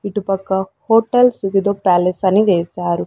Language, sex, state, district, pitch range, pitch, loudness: Telugu, female, Andhra Pradesh, Sri Satya Sai, 185-215 Hz, 195 Hz, -16 LUFS